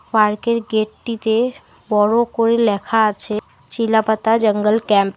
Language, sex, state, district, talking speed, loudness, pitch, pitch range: Bengali, female, West Bengal, Alipurduar, 125 wpm, -17 LUFS, 220 Hz, 210-230 Hz